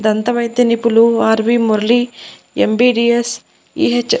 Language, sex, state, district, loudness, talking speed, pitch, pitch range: Telugu, female, Andhra Pradesh, Annamaya, -14 LUFS, 185 wpm, 235 Hz, 225-240 Hz